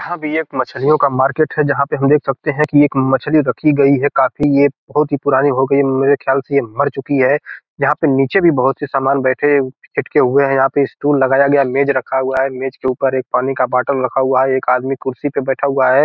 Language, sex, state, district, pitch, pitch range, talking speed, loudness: Hindi, male, Bihar, Gopalganj, 140 Hz, 130-145 Hz, 260 wpm, -15 LUFS